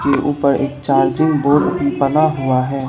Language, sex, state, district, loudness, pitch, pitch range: Hindi, male, Bihar, Katihar, -16 LUFS, 140 Hz, 135-145 Hz